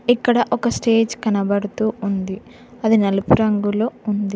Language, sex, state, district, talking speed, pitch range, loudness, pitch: Telugu, female, Telangana, Mahabubabad, 125 wpm, 200-230 Hz, -19 LUFS, 220 Hz